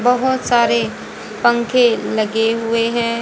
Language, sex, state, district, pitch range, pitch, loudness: Hindi, female, Haryana, Rohtak, 225-240 Hz, 235 Hz, -16 LUFS